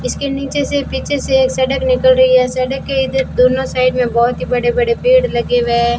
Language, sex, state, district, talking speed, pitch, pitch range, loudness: Hindi, female, Rajasthan, Bikaner, 230 wpm, 260 Hz, 250-275 Hz, -14 LUFS